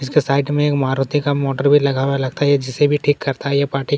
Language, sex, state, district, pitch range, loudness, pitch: Hindi, male, Chhattisgarh, Kabirdham, 135-145 Hz, -17 LUFS, 140 Hz